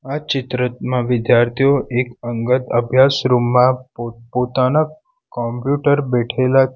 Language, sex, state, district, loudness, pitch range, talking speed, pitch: Gujarati, male, Gujarat, Valsad, -17 LUFS, 120-135 Hz, 115 wpm, 125 Hz